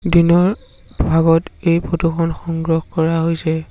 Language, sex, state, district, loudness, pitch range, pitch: Assamese, male, Assam, Sonitpur, -17 LUFS, 165-170 Hz, 165 Hz